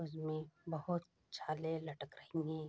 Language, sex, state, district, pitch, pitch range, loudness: Hindi, female, Bihar, Saharsa, 160 Hz, 155-165 Hz, -43 LUFS